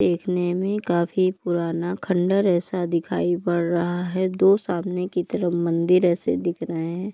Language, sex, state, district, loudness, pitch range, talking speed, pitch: Hindi, male, Bihar, Jahanabad, -23 LUFS, 170-185 Hz, 160 wpm, 175 Hz